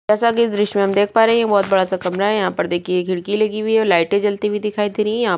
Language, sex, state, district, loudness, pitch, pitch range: Hindi, female, Chhattisgarh, Kabirdham, -17 LUFS, 205 Hz, 195-215 Hz